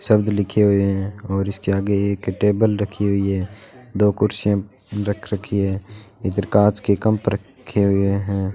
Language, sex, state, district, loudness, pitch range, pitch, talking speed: Hindi, male, Rajasthan, Bikaner, -20 LUFS, 100-105 Hz, 100 Hz, 170 wpm